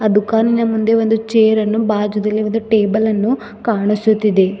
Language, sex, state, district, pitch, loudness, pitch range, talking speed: Kannada, female, Karnataka, Bidar, 215 Hz, -15 LUFS, 210-225 Hz, 145 wpm